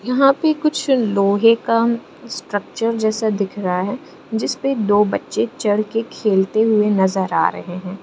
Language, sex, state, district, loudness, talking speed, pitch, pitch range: Hindi, female, Arunachal Pradesh, Lower Dibang Valley, -18 LUFS, 165 wpm, 220 Hz, 200-235 Hz